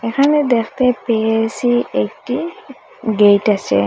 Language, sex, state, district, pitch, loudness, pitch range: Bengali, female, Assam, Hailakandi, 230 Hz, -16 LUFS, 215-255 Hz